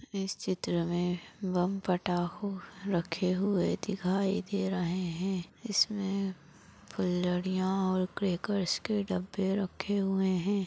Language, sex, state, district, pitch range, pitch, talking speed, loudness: Hindi, female, Maharashtra, Dhule, 180-195 Hz, 190 Hz, 110 wpm, -32 LUFS